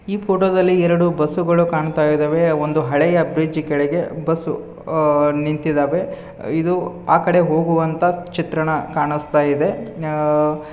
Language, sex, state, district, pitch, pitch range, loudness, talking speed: Kannada, male, Karnataka, Bijapur, 160 Hz, 150-170 Hz, -18 LUFS, 125 wpm